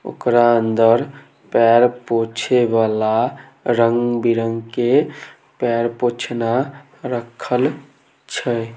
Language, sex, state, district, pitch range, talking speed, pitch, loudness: Maithili, male, Bihar, Samastipur, 115-120 Hz, 75 wpm, 115 Hz, -18 LUFS